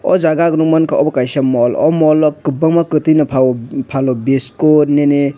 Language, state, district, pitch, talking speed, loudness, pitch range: Kokborok, Tripura, West Tripura, 150 Hz, 190 wpm, -13 LUFS, 135-160 Hz